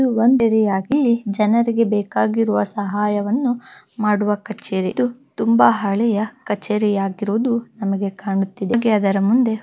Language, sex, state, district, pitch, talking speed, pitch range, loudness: Kannada, female, Karnataka, Bellary, 210 Hz, 100 wpm, 200-230 Hz, -19 LUFS